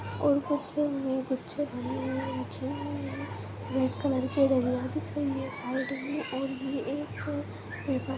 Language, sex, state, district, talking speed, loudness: Hindi, female, Uttarakhand, Tehri Garhwal, 155 wpm, -31 LUFS